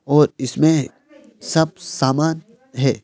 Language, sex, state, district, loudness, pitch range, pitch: Hindi, male, Madhya Pradesh, Bhopal, -19 LUFS, 135-185 Hz, 160 Hz